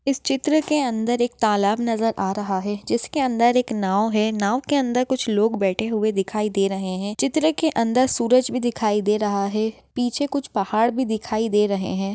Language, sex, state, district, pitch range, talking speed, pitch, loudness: Hindi, female, Maharashtra, Chandrapur, 205-250 Hz, 210 wpm, 220 Hz, -21 LUFS